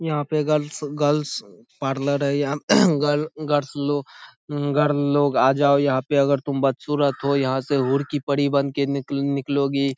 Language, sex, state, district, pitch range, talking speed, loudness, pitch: Hindi, male, Bihar, Saharsa, 140-145 Hz, 170 wpm, -22 LUFS, 140 Hz